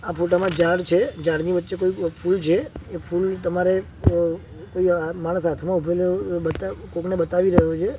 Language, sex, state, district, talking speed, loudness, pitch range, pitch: Gujarati, male, Gujarat, Gandhinagar, 165 wpm, -22 LUFS, 170-180 Hz, 175 Hz